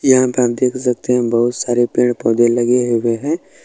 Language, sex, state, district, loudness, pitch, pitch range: Maithili, male, Bihar, Supaul, -16 LUFS, 120 Hz, 120-125 Hz